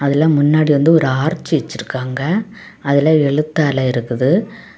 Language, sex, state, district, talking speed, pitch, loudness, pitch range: Tamil, female, Tamil Nadu, Kanyakumari, 115 wpm, 150 Hz, -15 LUFS, 140-160 Hz